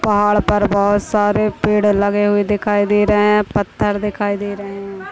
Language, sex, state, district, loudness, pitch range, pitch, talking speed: Hindi, female, Chhattisgarh, Raigarh, -16 LUFS, 205-210 Hz, 205 Hz, 175 wpm